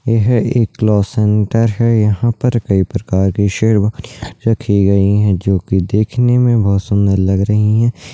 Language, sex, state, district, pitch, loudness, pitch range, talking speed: Hindi, male, Uttarakhand, Uttarkashi, 105 Hz, -14 LUFS, 100-115 Hz, 170 wpm